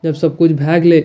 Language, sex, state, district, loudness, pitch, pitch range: Maithili, male, Bihar, Madhepura, -13 LUFS, 165 Hz, 160-170 Hz